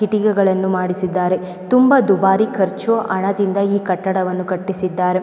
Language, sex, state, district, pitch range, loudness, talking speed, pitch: Kannada, female, Karnataka, Mysore, 185-200 Hz, -17 LUFS, 115 wpm, 190 Hz